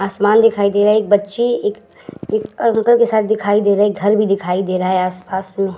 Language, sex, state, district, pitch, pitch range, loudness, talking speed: Hindi, female, Uttar Pradesh, Hamirpur, 205 Hz, 195-215 Hz, -15 LUFS, 250 wpm